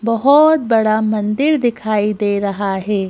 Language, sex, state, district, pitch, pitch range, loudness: Hindi, female, Madhya Pradesh, Bhopal, 215 Hz, 205-240 Hz, -15 LUFS